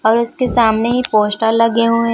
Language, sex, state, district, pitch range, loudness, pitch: Hindi, female, Chhattisgarh, Raipur, 225-235 Hz, -14 LUFS, 230 Hz